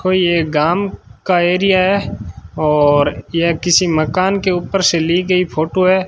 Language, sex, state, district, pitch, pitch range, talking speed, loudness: Hindi, male, Rajasthan, Bikaner, 175 Hz, 155-185 Hz, 170 wpm, -15 LUFS